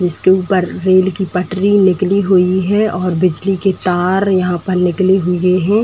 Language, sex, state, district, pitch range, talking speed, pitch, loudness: Hindi, female, Uttar Pradesh, Etah, 180-195 Hz, 175 wpm, 185 Hz, -14 LUFS